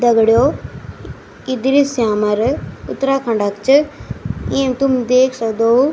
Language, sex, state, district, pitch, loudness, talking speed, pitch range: Garhwali, male, Uttarakhand, Tehri Garhwal, 250 Hz, -16 LUFS, 120 wpm, 225-270 Hz